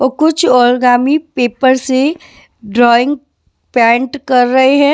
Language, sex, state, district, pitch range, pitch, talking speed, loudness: Hindi, female, Bihar, West Champaran, 245-285 Hz, 260 Hz, 120 wpm, -11 LUFS